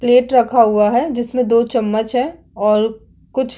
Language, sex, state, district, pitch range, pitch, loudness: Hindi, female, Chhattisgarh, Kabirdham, 220-250 Hz, 240 Hz, -16 LUFS